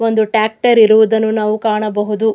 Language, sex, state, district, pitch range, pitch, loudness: Kannada, female, Karnataka, Mysore, 215-220 Hz, 220 Hz, -13 LUFS